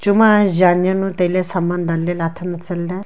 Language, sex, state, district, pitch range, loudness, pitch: Wancho, female, Arunachal Pradesh, Longding, 175-190 Hz, -17 LUFS, 180 Hz